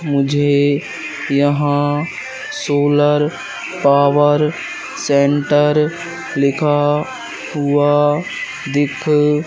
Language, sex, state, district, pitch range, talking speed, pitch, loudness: Hindi, male, Madhya Pradesh, Katni, 145-150 Hz, 50 wpm, 145 Hz, -16 LUFS